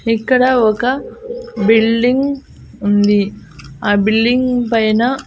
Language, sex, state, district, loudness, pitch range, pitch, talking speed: Telugu, female, Andhra Pradesh, Annamaya, -14 LUFS, 210-255 Hz, 230 Hz, 80 wpm